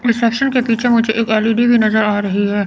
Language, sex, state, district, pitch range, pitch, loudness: Hindi, female, Chandigarh, Chandigarh, 215-235 Hz, 230 Hz, -15 LUFS